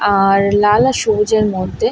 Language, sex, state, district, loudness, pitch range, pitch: Bengali, female, West Bengal, Paschim Medinipur, -14 LUFS, 200-220 Hz, 210 Hz